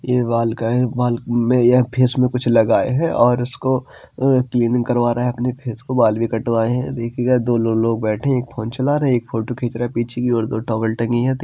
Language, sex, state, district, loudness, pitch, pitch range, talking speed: Hindi, male, Uttar Pradesh, Jalaun, -18 LUFS, 120 Hz, 115-125 Hz, 230 wpm